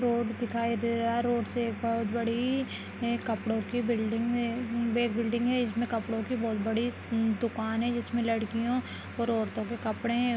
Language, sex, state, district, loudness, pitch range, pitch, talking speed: Hindi, female, Rajasthan, Nagaur, -30 LUFS, 225-240 Hz, 235 Hz, 180 wpm